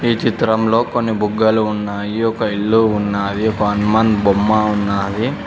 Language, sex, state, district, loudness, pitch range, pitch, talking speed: Telugu, male, Telangana, Mahabubabad, -16 LUFS, 105-110 Hz, 110 Hz, 120 wpm